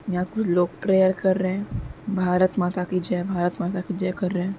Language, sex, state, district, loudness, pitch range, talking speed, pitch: Hindi, female, Uttar Pradesh, Deoria, -24 LUFS, 180-190 Hz, 235 wpm, 185 Hz